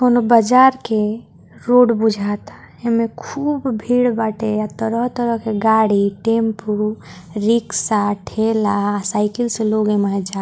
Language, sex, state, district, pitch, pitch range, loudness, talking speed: Bhojpuri, female, Bihar, Muzaffarpur, 220 Hz, 210-235 Hz, -17 LUFS, 120 wpm